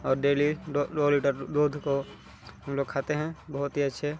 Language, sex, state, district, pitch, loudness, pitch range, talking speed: Hindi, male, Chhattisgarh, Balrampur, 140 Hz, -28 LUFS, 140-145 Hz, 215 wpm